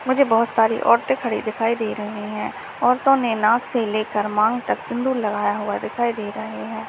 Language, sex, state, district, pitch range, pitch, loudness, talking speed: Hindi, male, Rajasthan, Churu, 210-240 Hz, 220 Hz, -21 LUFS, 210 wpm